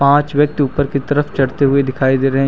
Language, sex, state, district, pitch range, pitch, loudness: Hindi, male, Uttar Pradesh, Lucknow, 135-145 Hz, 140 Hz, -15 LUFS